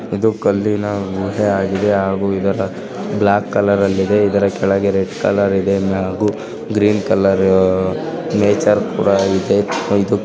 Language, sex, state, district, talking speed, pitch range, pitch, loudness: Kannada, male, Karnataka, Bijapur, 125 wpm, 95-105 Hz, 100 Hz, -16 LUFS